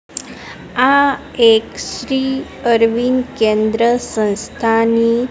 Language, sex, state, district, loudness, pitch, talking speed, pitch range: Gujarati, female, Gujarat, Gandhinagar, -15 LUFS, 235 Hz, 70 wpm, 225-255 Hz